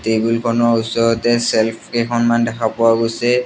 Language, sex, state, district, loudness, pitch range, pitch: Assamese, male, Assam, Sonitpur, -16 LUFS, 115-120 Hz, 115 Hz